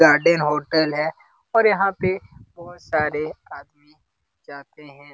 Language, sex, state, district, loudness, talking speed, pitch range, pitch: Hindi, male, Bihar, Jamui, -20 LUFS, 130 wpm, 145-175 Hz, 150 Hz